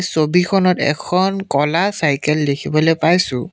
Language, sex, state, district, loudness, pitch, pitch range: Assamese, male, Assam, Sonitpur, -16 LUFS, 160 Hz, 150-180 Hz